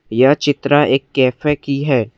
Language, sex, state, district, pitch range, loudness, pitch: Hindi, male, Assam, Kamrup Metropolitan, 130-145 Hz, -15 LUFS, 140 Hz